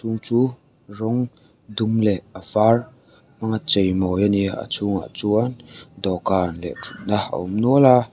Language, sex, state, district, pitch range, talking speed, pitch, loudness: Mizo, male, Mizoram, Aizawl, 95-120 Hz, 175 wpm, 110 Hz, -21 LUFS